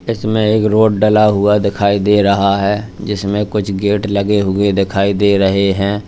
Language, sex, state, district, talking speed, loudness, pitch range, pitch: Hindi, male, Uttar Pradesh, Lalitpur, 180 wpm, -14 LUFS, 100-105 Hz, 100 Hz